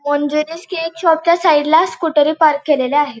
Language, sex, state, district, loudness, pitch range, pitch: Marathi, female, Goa, North and South Goa, -15 LUFS, 295-330 Hz, 310 Hz